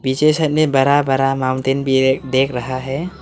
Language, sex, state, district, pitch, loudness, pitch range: Hindi, male, Arunachal Pradesh, Lower Dibang Valley, 135 Hz, -17 LUFS, 130-145 Hz